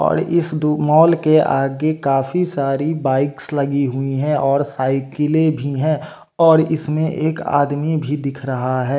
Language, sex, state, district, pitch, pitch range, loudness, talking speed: Hindi, male, Bihar, West Champaran, 150 Hz, 135-155 Hz, -18 LUFS, 160 wpm